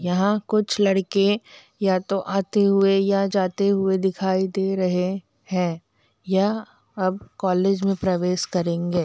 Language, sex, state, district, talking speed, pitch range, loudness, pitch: Hindi, female, Bihar, Muzaffarpur, 130 wpm, 185-195 Hz, -22 LUFS, 195 Hz